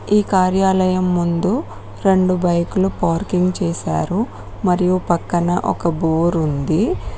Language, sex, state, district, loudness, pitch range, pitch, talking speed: Telugu, female, Telangana, Mahabubabad, -18 LUFS, 170-185 Hz, 180 Hz, 100 wpm